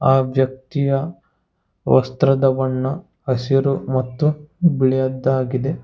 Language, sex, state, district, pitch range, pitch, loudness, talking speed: Kannada, male, Karnataka, Bangalore, 130-140 Hz, 135 Hz, -19 LUFS, 70 wpm